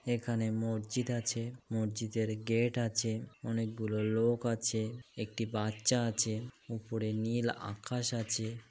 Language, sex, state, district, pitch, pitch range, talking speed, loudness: Bengali, male, West Bengal, North 24 Parganas, 115 Hz, 110-120 Hz, 125 wpm, -35 LUFS